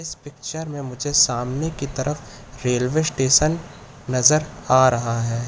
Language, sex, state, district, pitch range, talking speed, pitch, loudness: Hindi, male, Madhya Pradesh, Katni, 125-150 Hz, 145 wpm, 135 Hz, -20 LUFS